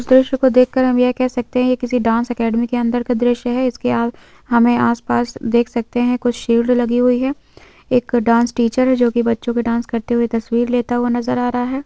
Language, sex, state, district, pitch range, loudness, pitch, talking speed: Hindi, female, West Bengal, Jhargram, 235-250 Hz, -17 LUFS, 245 Hz, 235 wpm